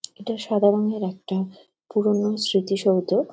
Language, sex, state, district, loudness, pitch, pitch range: Bengali, female, West Bengal, Kolkata, -23 LUFS, 205 Hz, 190-210 Hz